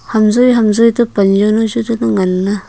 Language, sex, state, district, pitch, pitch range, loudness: Wancho, female, Arunachal Pradesh, Longding, 220 Hz, 200-230 Hz, -12 LUFS